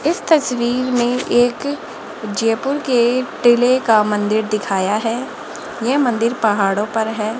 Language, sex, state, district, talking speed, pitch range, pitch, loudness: Hindi, female, Rajasthan, Jaipur, 130 wpm, 215-250 Hz, 235 Hz, -17 LUFS